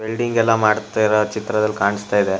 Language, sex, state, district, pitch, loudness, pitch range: Kannada, male, Karnataka, Shimoga, 110 Hz, -18 LUFS, 105-110 Hz